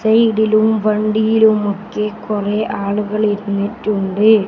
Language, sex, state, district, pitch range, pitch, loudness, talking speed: Malayalam, male, Kerala, Kasaragod, 205-220 Hz, 215 Hz, -16 LUFS, 80 wpm